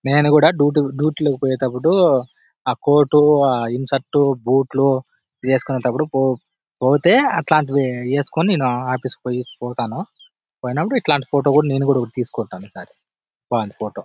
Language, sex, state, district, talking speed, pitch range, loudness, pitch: Telugu, male, Andhra Pradesh, Anantapur, 130 wpm, 125-150 Hz, -18 LUFS, 135 Hz